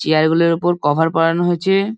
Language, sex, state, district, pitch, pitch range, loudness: Bengali, male, West Bengal, Dakshin Dinajpur, 165 Hz, 160-175 Hz, -16 LUFS